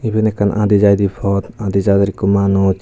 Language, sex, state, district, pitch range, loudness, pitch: Chakma, male, Tripura, Dhalai, 100-105 Hz, -15 LUFS, 100 Hz